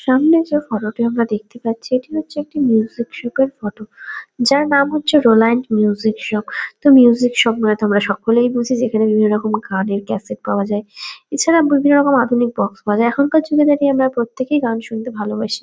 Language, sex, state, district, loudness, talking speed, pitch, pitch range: Bengali, female, West Bengal, North 24 Parganas, -16 LUFS, 180 wpm, 240 Hz, 215-280 Hz